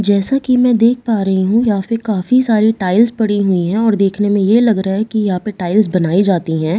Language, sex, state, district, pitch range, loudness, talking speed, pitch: Hindi, female, Bihar, Katihar, 190-225 Hz, -14 LUFS, 265 wpm, 210 Hz